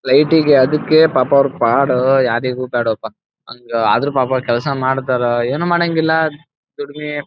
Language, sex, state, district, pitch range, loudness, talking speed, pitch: Kannada, male, Karnataka, Dharwad, 125-150 Hz, -15 LUFS, 130 wpm, 135 Hz